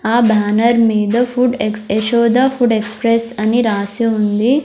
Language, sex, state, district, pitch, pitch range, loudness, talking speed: Telugu, female, Andhra Pradesh, Sri Satya Sai, 230 Hz, 215-240 Hz, -14 LUFS, 140 wpm